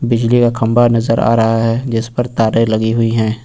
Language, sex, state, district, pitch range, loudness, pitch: Hindi, male, Uttar Pradesh, Lucknow, 115-120 Hz, -14 LUFS, 115 Hz